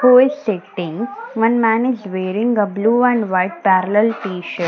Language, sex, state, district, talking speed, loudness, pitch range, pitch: English, female, Odisha, Nuapada, 165 wpm, -17 LUFS, 185-240 Hz, 215 Hz